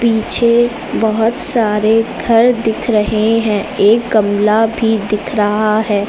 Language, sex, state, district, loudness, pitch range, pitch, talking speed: Hindi, female, Uttar Pradesh, Lucknow, -13 LUFS, 210-230 Hz, 220 Hz, 130 wpm